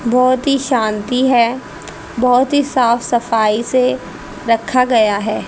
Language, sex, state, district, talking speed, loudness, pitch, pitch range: Hindi, female, Haryana, Jhajjar, 130 wpm, -15 LUFS, 250 Hz, 230-255 Hz